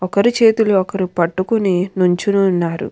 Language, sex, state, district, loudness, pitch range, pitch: Telugu, female, Andhra Pradesh, Krishna, -16 LUFS, 180-200 Hz, 190 Hz